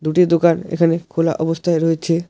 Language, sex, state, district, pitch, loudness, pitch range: Bengali, male, West Bengal, Alipurduar, 165 Hz, -17 LUFS, 165-170 Hz